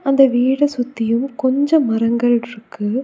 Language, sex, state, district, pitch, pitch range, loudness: Tamil, female, Tamil Nadu, Nilgiris, 250 Hz, 230-275 Hz, -17 LUFS